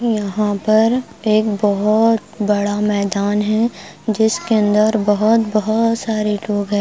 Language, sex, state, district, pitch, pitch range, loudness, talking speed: Hindi, female, Himachal Pradesh, Shimla, 215 Hz, 205-220 Hz, -17 LUFS, 125 wpm